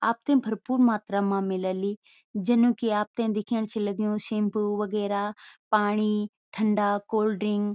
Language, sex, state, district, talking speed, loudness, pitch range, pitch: Garhwali, female, Uttarakhand, Tehri Garhwal, 140 wpm, -26 LUFS, 205-220 Hz, 210 Hz